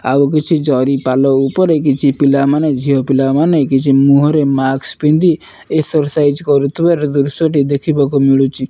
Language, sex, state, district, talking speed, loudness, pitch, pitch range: Odia, male, Odisha, Nuapada, 115 wpm, -13 LUFS, 140 Hz, 135-155 Hz